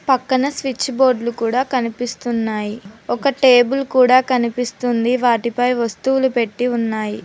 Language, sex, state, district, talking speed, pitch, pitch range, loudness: Telugu, female, Telangana, Mahabubabad, 110 wpm, 245 Hz, 235-260 Hz, -17 LUFS